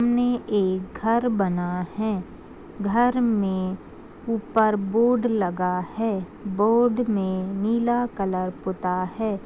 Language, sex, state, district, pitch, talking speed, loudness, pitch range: Hindi, female, Uttar Pradesh, Gorakhpur, 210 Hz, 110 wpm, -24 LUFS, 185-230 Hz